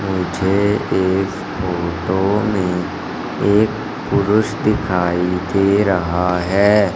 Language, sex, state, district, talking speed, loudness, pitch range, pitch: Hindi, male, Madhya Pradesh, Katni, 85 wpm, -17 LUFS, 90-105 Hz, 95 Hz